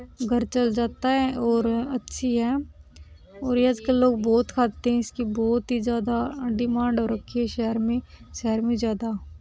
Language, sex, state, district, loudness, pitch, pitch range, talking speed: Hindi, female, Rajasthan, Churu, -25 LUFS, 235 Hz, 230-245 Hz, 180 wpm